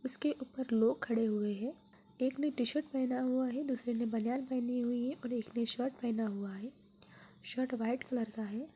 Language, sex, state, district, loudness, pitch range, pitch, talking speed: Hindi, female, Bihar, Jamui, -36 LUFS, 230-260 Hz, 245 Hz, 205 wpm